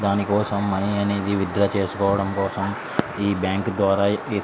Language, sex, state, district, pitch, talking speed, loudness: Telugu, male, Andhra Pradesh, Srikakulam, 100 Hz, 150 wpm, -22 LUFS